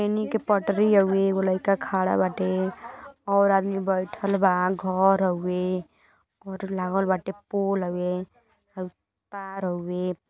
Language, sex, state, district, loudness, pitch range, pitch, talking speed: Bhojpuri, female, Uttar Pradesh, Deoria, -25 LUFS, 185-200 Hz, 195 Hz, 130 wpm